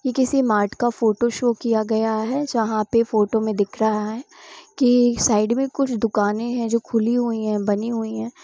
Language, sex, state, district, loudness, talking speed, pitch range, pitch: Hindi, female, Bihar, Sitamarhi, -21 LUFS, 215 wpm, 220-245 Hz, 230 Hz